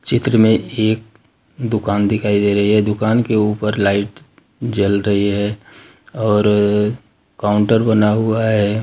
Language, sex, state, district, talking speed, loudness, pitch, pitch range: Hindi, male, Bihar, Darbhanga, 135 wpm, -16 LUFS, 105 Hz, 105-110 Hz